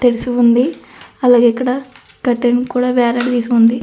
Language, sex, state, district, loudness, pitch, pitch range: Telugu, female, Andhra Pradesh, Anantapur, -14 LUFS, 245 Hz, 240-250 Hz